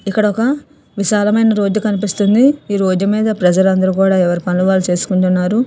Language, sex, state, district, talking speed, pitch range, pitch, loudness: Telugu, female, Andhra Pradesh, Visakhapatnam, 150 wpm, 185-215 Hz, 200 Hz, -14 LUFS